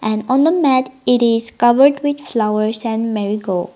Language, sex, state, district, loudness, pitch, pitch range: English, female, Nagaland, Dimapur, -16 LUFS, 230 Hz, 215-260 Hz